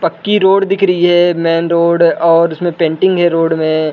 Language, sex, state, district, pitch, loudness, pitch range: Hindi, male, Uttar Pradesh, Budaun, 170 Hz, -12 LUFS, 165-180 Hz